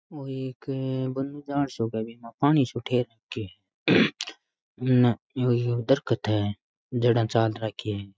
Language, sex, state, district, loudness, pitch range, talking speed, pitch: Rajasthani, male, Rajasthan, Nagaur, -26 LUFS, 110-130 Hz, 160 wpm, 120 Hz